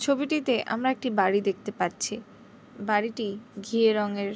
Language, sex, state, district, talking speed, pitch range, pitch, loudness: Bengali, female, West Bengal, Jhargram, 140 wpm, 205-245 Hz, 215 Hz, -27 LUFS